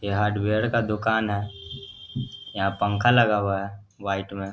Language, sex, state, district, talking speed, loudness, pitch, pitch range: Hindi, male, Bihar, Darbhanga, 160 wpm, -24 LUFS, 100 Hz, 100-110 Hz